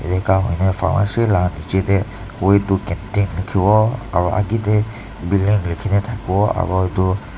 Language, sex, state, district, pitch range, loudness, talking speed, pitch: Nagamese, male, Nagaland, Dimapur, 95-105 Hz, -18 LUFS, 145 wpm, 100 Hz